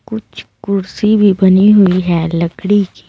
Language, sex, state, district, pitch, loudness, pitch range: Hindi, female, Uttar Pradesh, Saharanpur, 195 Hz, -12 LUFS, 185-210 Hz